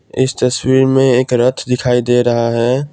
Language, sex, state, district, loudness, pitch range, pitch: Hindi, male, Assam, Kamrup Metropolitan, -13 LUFS, 120-130 Hz, 125 Hz